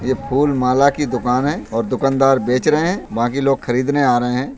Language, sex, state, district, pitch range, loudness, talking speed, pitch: Hindi, male, Uttar Pradesh, Budaun, 125-140 Hz, -17 LUFS, 225 wpm, 135 Hz